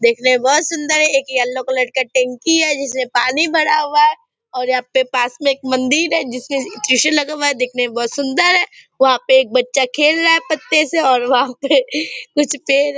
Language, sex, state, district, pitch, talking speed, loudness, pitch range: Hindi, female, Bihar, Purnia, 275 Hz, 220 wpm, -15 LUFS, 255-305 Hz